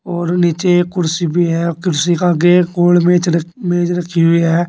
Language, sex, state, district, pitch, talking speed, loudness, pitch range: Hindi, male, Uttar Pradesh, Saharanpur, 175 Hz, 230 wpm, -14 LUFS, 170-175 Hz